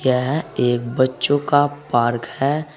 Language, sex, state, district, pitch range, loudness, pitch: Hindi, male, Uttar Pradesh, Saharanpur, 125-145 Hz, -19 LUFS, 135 Hz